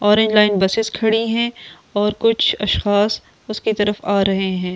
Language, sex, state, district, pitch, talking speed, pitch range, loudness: Hindi, female, Delhi, New Delhi, 210 Hz, 165 wpm, 195-220 Hz, -18 LUFS